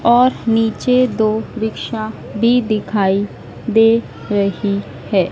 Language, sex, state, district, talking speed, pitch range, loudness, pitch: Hindi, female, Madhya Pradesh, Dhar, 100 wpm, 205-230 Hz, -17 LUFS, 220 Hz